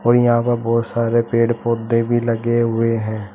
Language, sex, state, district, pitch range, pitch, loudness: Hindi, male, Uttar Pradesh, Saharanpur, 115-120 Hz, 115 Hz, -18 LUFS